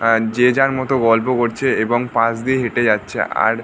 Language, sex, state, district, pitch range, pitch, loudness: Bengali, male, West Bengal, North 24 Parganas, 115-130 Hz, 120 Hz, -17 LUFS